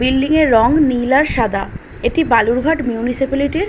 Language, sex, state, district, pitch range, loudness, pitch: Bengali, female, West Bengal, Dakshin Dinajpur, 240-305 Hz, -15 LUFS, 270 Hz